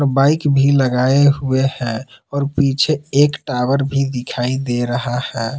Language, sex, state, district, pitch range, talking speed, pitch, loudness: Hindi, male, Jharkhand, Palamu, 125-140 Hz, 150 wpm, 135 Hz, -17 LUFS